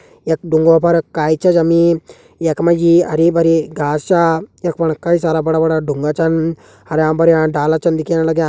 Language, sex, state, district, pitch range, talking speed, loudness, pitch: Garhwali, male, Uttarakhand, Uttarkashi, 160-170 Hz, 185 wpm, -14 LUFS, 165 Hz